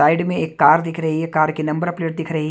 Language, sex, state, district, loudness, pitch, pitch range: Hindi, male, Haryana, Jhajjar, -19 LUFS, 160 Hz, 155-165 Hz